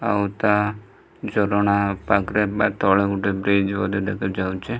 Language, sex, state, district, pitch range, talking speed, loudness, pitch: Odia, male, Odisha, Malkangiri, 100-105 Hz, 115 wpm, -21 LUFS, 100 Hz